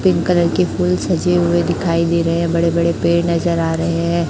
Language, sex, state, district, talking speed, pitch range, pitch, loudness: Hindi, male, Chhattisgarh, Raipur, 235 wpm, 170-175 Hz, 170 Hz, -16 LUFS